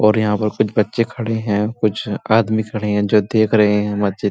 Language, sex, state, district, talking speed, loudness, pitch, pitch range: Hindi, male, Uttar Pradesh, Muzaffarnagar, 225 wpm, -17 LUFS, 105 Hz, 105-110 Hz